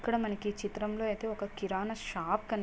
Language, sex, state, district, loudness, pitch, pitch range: Telugu, female, Andhra Pradesh, Guntur, -35 LUFS, 210 Hz, 205-220 Hz